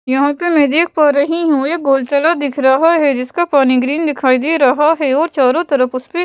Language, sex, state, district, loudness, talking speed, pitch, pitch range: Hindi, female, Bihar, West Champaran, -13 LUFS, 230 wpm, 285 Hz, 270-325 Hz